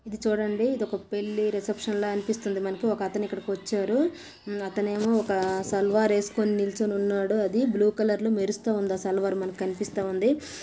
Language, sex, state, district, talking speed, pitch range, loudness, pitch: Telugu, female, Karnataka, Bellary, 150 wpm, 200-215 Hz, -27 LUFS, 205 Hz